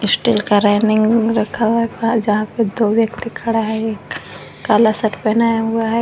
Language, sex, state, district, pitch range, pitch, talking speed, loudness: Hindi, female, Jharkhand, Garhwa, 215-230 Hz, 225 Hz, 180 wpm, -16 LUFS